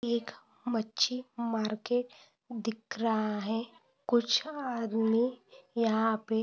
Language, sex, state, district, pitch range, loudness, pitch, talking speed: Hindi, female, Maharashtra, Nagpur, 225-245 Hz, -32 LUFS, 230 Hz, 95 wpm